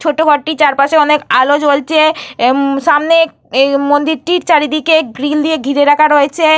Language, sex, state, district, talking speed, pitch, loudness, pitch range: Bengali, female, Jharkhand, Jamtara, 135 wpm, 300 Hz, -11 LUFS, 280-315 Hz